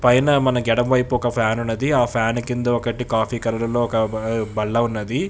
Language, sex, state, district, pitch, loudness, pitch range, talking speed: Telugu, male, Telangana, Hyderabad, 120 Hz, -20 LUFS, 115-125 Hz, 145 wpm